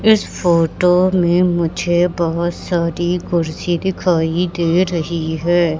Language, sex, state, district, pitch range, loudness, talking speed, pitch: Hindi, female, Madhya Pradesh, Katni, 170-180 Hz, -17 LUFS, 115 wpm, 175 Hz